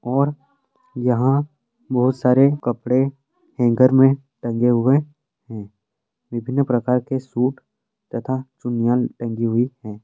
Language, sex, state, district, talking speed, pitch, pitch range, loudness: Hindi, male, Uttar Pradesh, Deoria, 115 wpm, 125 Hz, 120-135 Hz, -20 LUFS